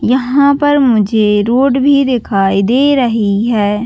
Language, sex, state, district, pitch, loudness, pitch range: Hindi, female, Chhattisgarh, Bastar, 240 Hz, -11 LUFS, 210-275 Hz